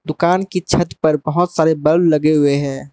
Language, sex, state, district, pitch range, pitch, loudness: Hindi, male, Manipur, Imphal West, 150-175 Hz, 155 Hz, -16 LUFS